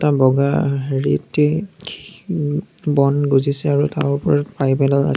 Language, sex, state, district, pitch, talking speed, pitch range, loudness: Assamese, male, Assam, Sonitpur, 145 Hz, 125 wpm, 140-150 Hz, -18 LUFS